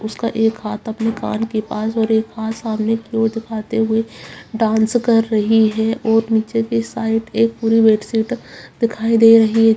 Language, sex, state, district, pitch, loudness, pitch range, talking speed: Hindi, female, Bihar, Madhepura, 225 Hz, -17 LUFS, 220-225 Hz, 185 wpm